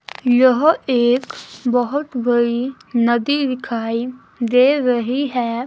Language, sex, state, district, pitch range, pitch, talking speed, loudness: Hindi, female, Himachal Pradesh, Shimla, 240-265 Hz, 245 Hz, 95 wpm, -18 LUFS